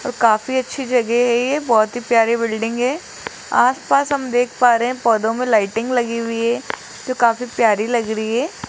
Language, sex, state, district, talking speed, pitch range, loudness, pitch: Hindi, male, Rajasthan, Jaipur, 200 wpm, 230-250 Hz, -18 LUFS, 240 Hz